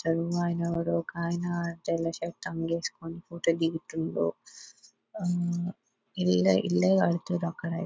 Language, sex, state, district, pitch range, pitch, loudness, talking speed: Telugu, female, Telangana, Nalgonda, 165-175 Hz, 170 Hz, -29 LUFS, 100 wpm